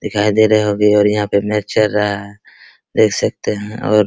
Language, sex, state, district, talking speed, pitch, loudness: Hindi, male, Bihar, Araria, 235 wpm, 105 Hz, -15 LUFS